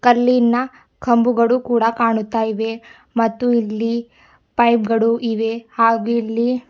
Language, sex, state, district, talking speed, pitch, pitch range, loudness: Kannada, female, Karnataka, Bidar, 105 wpm, 235 Hz, 225-240 Hz, -18 LUFS